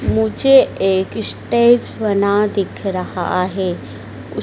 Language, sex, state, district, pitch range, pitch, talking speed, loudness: Hindi, female, Madhya Pradesh, Dhar, 190-220 Hz, 200 Hz, 110 wpm, -16 LUFS